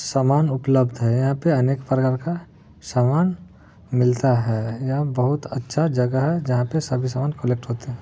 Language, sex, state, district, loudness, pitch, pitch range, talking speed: Hindi, male, Bihar, Muzaffarpur, -21 LUFS, 130 Hz, 125-145 Hz, 170 wpm